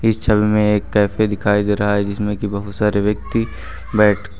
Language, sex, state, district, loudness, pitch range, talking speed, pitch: Hindi, male, Uttar Pradesh, Lucknow, -18 LUFS, 100-105 Hz, 190 wpm, 105 Hz